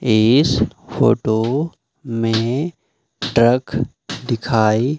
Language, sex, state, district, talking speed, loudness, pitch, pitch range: Hindi, male, Madhya Pradesh, Umaria, 60 wpm, -18 LUFS, 120 Hz, 115-135 Hz